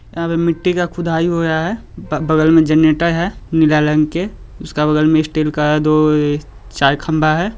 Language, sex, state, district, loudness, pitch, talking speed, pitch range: Hindi, male, Bihar, Muzaffarpur, -15 LUFS, 155 Hz, 190 wpm, 150-170 Hz